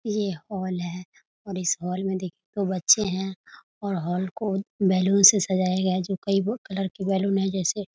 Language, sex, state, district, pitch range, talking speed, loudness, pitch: Hindi, female, Bihar, Muzaffarpur, 185-200 Hz, 190 wpm, -24 LUFS, 190 Hz